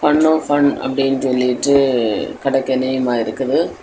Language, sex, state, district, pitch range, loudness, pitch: Tamil, female, Tamil Nadu, Kanyakumari, 125-140 Hz, -17 LUFS, 135 Hz